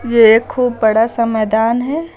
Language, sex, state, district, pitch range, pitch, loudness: Hindi, female, Uttar Pradesh, Lucknow, 220-245 Hz, 230 Hz, -13 LUFS